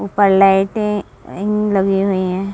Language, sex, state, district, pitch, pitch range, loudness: Hindi, female, Chhattisgarh, Bilaspur, 195 Hz, 195-205 Hz, -16 LUFS